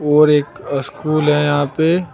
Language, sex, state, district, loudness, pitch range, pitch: Hindi, male, Uttar Pradesh, Shamli, -16 LUFS, 145-155 Hz, 150 Hz